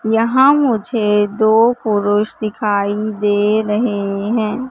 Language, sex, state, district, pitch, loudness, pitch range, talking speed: Hindi, female, Madhya Pradesh, Katni, 215 Hz, -15 LUFS, 205-230 Hz, 100 wpm